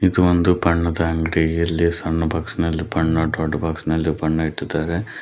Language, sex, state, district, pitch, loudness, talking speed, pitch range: Kannada, male, Karnataka, Koppal, 80 Hz, -20 LUFS, 160 wpm, 80-85 Hz